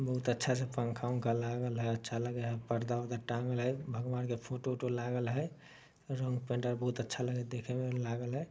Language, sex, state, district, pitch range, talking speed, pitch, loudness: Maithili, male, Bihar, Samastipur, 120-125 Hz, 195 wpm, 125 Hz, -37 LUFS